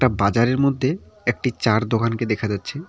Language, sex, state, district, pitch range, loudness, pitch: Bengali, male, West Bengal, Cooch Behar, 110-130 Hz, -21 LUFS, 115 Hz